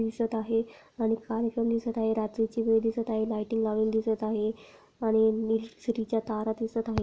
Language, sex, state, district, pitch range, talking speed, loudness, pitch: Marathi, female, Maharashtra, Pune, 220-225 Hz, 170 wpm, -29 LUFS, 225 Hz